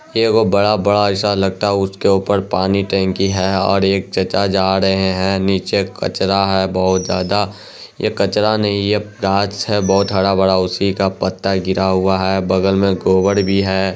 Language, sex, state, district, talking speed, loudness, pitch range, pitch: Hindi, male, Bihar, Araria, 175 wpm, -16 LUFS, 95-100 Hz, 95 Hz